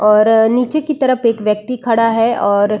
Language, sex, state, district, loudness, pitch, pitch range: Hindi, female, Bihar, Saran, -14 LUFS, 230 Hz, 210-250 Hz